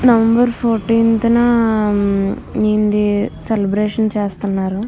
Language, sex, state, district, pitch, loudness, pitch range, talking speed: Telugu, female, Andhra Pradesh, Krishna, 215 Hz, -16 LUFS, 205-230 Hz, 75 wpm